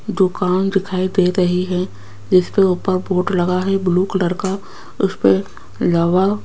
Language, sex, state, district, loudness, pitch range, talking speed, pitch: Hindi, female, Rajasthan, Jaipur, -17 LUFS, 180-190 Hz, 150 wpm, 185 Hz